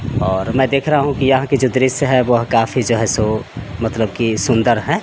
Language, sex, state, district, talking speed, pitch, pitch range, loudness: Hindi, male, Bihar, Samastipur, 240 wpm, 120 Hz, 115-130 Hz, -16 LUFS